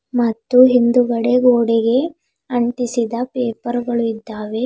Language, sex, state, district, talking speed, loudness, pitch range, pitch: Kannada, female, Karnataka, Bidar, 90 wpm, -17 LUFS, 230-250 Hz, 240 Hz